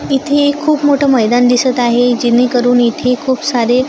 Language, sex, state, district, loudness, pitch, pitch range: Marathi, female, Maharashtra, Gondia, -12 LUFS, 250 Hz, 245-275 Hz